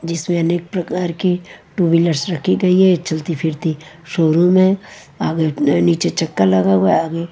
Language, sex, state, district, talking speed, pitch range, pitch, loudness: Hindi, female, Odisha, Nuapada, 165 wpm, 160-180 Hz, 170 Hz, -16 LUFS